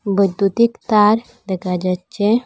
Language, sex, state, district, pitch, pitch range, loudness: Bengali, female, Assam, Hailakandi, 205 Hz, 185-230 Hz, -17 LUFS